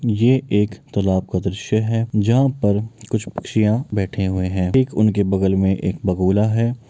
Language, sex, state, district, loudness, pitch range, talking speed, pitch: Maithili, male, Bihar, Bhagalpur, -19 LUFS, 95-115 Hz, 180 wpm, 105 Hz